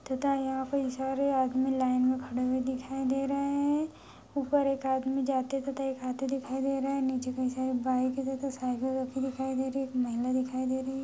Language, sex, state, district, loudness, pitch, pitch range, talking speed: Hindi, female, Bihar, Madhepura, -31 LUFS, 265 Hz, 255-270 Hz, 225 wpm